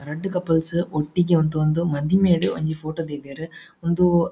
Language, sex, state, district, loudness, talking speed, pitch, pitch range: Tulu, male, Karnataka, Dakshina Kannada, -22 LUFS, 125 wpm, 165 Hz, 155-175 Hz